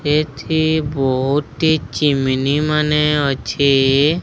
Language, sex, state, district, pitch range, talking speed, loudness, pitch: Odia, male, Odisha, Sambalpur, 135-150 Hz, 70 wpm, -16 LUFS, 145 Hz